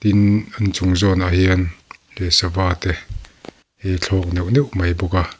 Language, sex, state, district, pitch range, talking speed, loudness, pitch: Mizo, male, Mizoram, Aizawl, 90-100 Hz, 180 wpm, -18 LUFS, 95 Hz